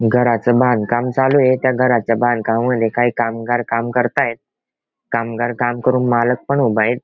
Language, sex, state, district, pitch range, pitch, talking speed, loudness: Marathi, male, Maharashtra, Pune, 115-125 Hz, 120 Hz, 160 wpm, -16 LUFS